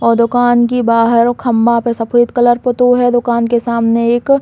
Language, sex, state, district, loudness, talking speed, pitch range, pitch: Bundeli, female, Uttar Pradesh, Hamirpur, -12 LUFS, 205 wpm, 235-245 Hz, 240 Hz